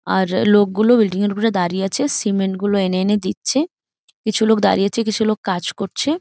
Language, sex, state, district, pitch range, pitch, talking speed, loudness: Bengali, female, West Bengal, Jhargram, 195-220 Hz, 205 Hz, 195 wpm, -18 LUFS